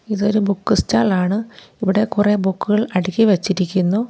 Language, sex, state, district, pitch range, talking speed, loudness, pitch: Malayalam, female, Kerala, Kollam, 190-215 Hz, 130 wpm, -18 LUFS, 205 Hz